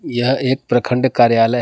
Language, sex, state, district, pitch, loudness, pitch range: Hindi, male, Jharkhand, Palamu, 125 Hz, -16 LUFS, 120-130 Hz